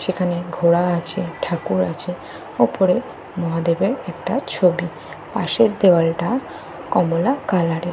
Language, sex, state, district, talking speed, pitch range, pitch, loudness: Bengali, female, Jharkhand, Jamtara, 105 wpm, 170-190 Hz, 175 Hz, -20 LUFS